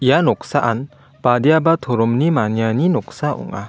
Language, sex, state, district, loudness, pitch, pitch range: Garo, male, Meghalaya, West Garo Hills, -17 LUFS, 130 Hz, 115-160 Hz